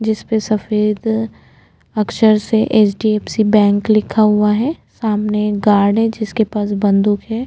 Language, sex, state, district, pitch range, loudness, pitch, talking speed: Hindi, female, Chhattisgarh, Jashpur, 210-220 Hz, -15 LUFS, 215 Hz, 130 wpm